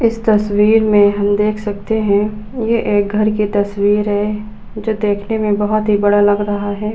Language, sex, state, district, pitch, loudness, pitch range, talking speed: Hindi, female, Uttar Pradesh, Budaun, 210 Hz, -15 LUFS, 205-215 Hz, 190 wpm